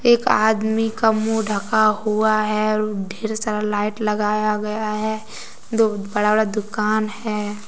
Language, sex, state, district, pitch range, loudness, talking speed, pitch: Hindi, female, Jharkhand, Deoghar, 210-220 Hz, -20 LUFS, 155 wpm, 215 Hz